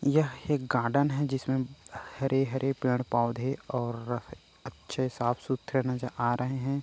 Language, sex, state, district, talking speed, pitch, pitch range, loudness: Chhattisgarhi, male, Chhattisgarh, Korba, 125 wpm, 130 Hz, 120-135 Hz, -30 LUFS